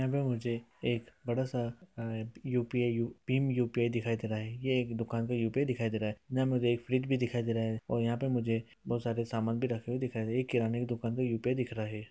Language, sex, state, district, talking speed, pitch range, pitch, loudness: Hindi, male, Bihar, East Champaran, 245 wpm, 115-125 Hz, 120 Hz, -33 LUFS